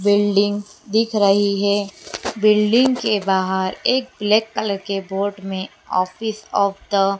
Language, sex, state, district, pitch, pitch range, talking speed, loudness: Hindi, female, Madhya Pradesh, Dhar, 205 Hz, 195-215 Hz, 140 wpm, -19 LUFS